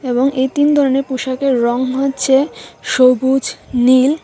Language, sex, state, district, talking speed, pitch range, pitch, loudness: Bengali, female, Tripura, West Tripura, 125 wpm, 255-275 Hz, 265 Hz, -15 LUFS